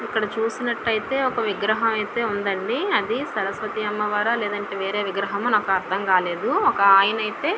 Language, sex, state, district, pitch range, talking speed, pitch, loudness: Telugu, female, Andhra Pradesh, Visakhapatnam, 200-225 Hz, 150 wpm, 210 Hz, -22 LUFS